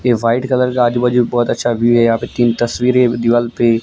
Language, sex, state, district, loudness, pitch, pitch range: Hindi, male, Gujarat, Gandhinagar, -14 LUFS, 120 Hz, 120-125 Hz